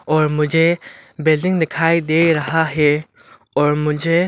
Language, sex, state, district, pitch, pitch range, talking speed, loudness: Hindi, male, Arunachal Pradesh, Lower Dibang Valley, 155 Hz, 150-165 Hz, 125 wpm, -17 LUFS